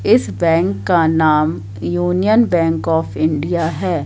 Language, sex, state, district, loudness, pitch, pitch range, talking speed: Hindi, female, Madhya Pradesh, Katni, -16 LUFS, 165 Hz, 155-175 Hz, 135 wpm